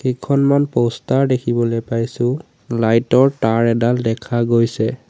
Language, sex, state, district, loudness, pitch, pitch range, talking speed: Assamese, male, Assam, Sonitpur, -17 LUFS, 120 Hz, 115-130 Hz, 105 wpm